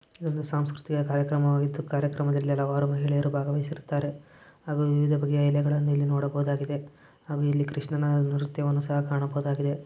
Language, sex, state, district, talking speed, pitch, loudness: Kannada, male, Karnataka, Gulbarga, 95 wpm, 145 Hz, -27 LUFS